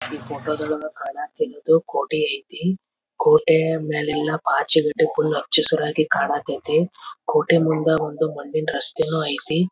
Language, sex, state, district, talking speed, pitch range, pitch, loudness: Kannada, male, Karnataka, Belgaum, 105 wpm, 155-190 Hz, 160 Hz, -20 LUFS